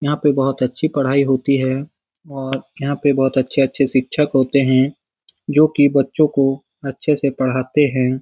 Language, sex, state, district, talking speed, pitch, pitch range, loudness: Hindi, male, Bihar, Lakhisarai, 170 wpm, 135 Hz, 130-145 Hz, -17 LUFS